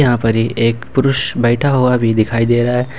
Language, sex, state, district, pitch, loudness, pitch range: Hindi, male, Jharkhand, Ranchi, 120 Hz, -14 LUFS, 115-130 Hz